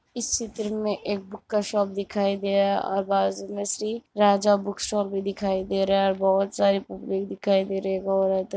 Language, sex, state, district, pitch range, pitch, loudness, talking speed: Hindi, female, Jharkhand, Jamtara, 195-205 Hz, 200 Hz, -25 LUFS, 230 wpm